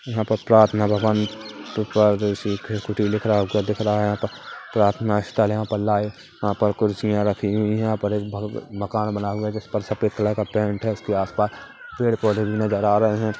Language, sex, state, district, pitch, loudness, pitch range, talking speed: Hindi, male, Chhattisgarh, Kabirdham, 105 Hz, -22 LUFS, 105-110 Hz, 200 wpm